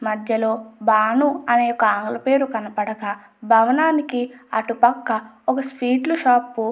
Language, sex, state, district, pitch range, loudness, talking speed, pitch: Telugu, female, Andhra Pradesh, Anantapur, 220-250 Hz, -20 LUFS, 125 wpm, 230 Hz